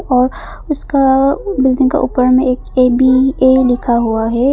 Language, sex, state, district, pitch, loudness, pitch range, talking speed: Hindi, female, Arunachal Pradesh, Papum Pare, 260 Hz, -13 LUFS, 250-270 Hz, 160 wpm